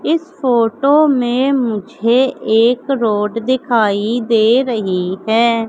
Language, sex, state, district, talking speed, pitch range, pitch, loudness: Hindi, female, Madhya Pradesh, Katni, 105 wpm, 220-260 Hz, 235 Hz, -15 LUFS